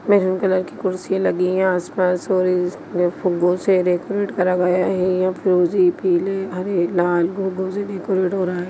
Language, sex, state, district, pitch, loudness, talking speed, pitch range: Hindi, female, Chhattisgarh, Bastar, 185 Hz, -19 LUFS, 165 wpm, 180-190 Hz